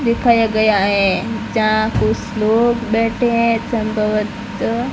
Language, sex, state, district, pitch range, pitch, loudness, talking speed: Hindi, female, Rajasthan, Barmer, 215-235 Hz, 225 Hz, -16 LUFS, 110 wpm